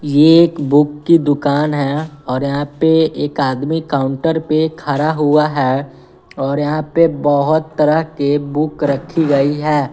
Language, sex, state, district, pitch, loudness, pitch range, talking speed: Hindi, female, Bihar, West Champaran, 145 Hz, -15 LUFS, 140-155 Hz, 155 wpm